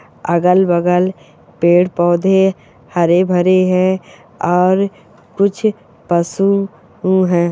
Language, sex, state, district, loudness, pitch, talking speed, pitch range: Hindi, female, Chhattisgarh, Bilaspur, -14 LUFS, 180 Hz, 95 wpm, 175-190 Hz